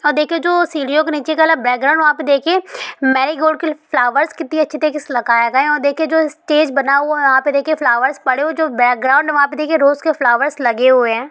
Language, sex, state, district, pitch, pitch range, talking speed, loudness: Hindi, female, Bihar, East Champaran, 295 Hz, 265-310 Hz, 250 wpm, -14 LUFS